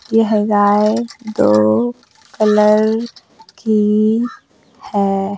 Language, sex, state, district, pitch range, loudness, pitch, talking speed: Hindi, female, Uttar Pradesh, Hamirpur, 200-225 Hz, -15 LUFS, 215 Hz, 65 wpm